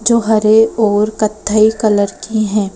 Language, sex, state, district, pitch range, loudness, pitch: Hindi, female, Madhya Pradesh, Bhopal, 210-220 Hz, -13 LUFS, 215 Hz